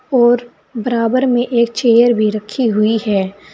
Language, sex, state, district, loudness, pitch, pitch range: Hindi, female, Uttar Pradesh, Saharanpur, -15 LUFS, 235 Hz, 215-245 Hz